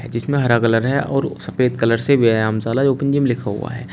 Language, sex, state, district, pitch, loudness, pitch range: Hindi, male, Uttar Pradesh, Shamli, 125 Hz, -18 LUFS, 115-140 Hz